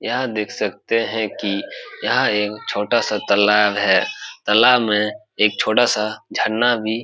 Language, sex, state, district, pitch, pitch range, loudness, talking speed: Hindi, male, Bihar, Supaul, 105 Hz, 105-115 Hz, -18 LUFS, 160 wpm